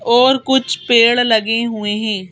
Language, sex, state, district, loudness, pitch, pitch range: Hindi, female, Madhya Pradesh, Bhopal, -14 LUFS, 230 Hz, 215-245 Hz